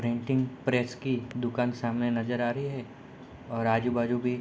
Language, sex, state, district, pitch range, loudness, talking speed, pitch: Hindi, male, Bihar, Sitamarhi, 120-125 Hz, -30 LUFS, 175 wpm, 120 Hz